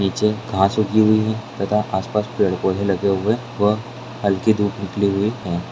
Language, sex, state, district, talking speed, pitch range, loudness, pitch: Hindi, male, Maharashtra, Pune, 170 wpm, 100-110 Hz, -20 LUFS, 105 Hz